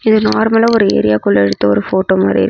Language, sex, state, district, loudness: Tamil, female, Tamil Nadu, Namakkal, -12 LUFS